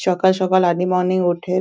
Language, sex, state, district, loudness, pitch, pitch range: Bengali, female, West Bengal, Dakshin Dinajpur, -18 LUFS, 185 Hz, 180-185 Hz